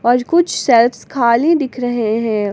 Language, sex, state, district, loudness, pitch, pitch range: Hindi, female, Jharkhand, Garhwa, -15 LUFS, 240 Hz, 230-265 Hz